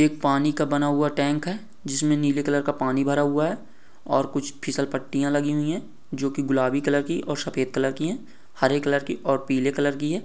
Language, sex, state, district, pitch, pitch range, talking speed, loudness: Hindi, male, Bihar, Vaishali, 145 Hz, 140-150 Hz, 230 wpm, -24 LUFS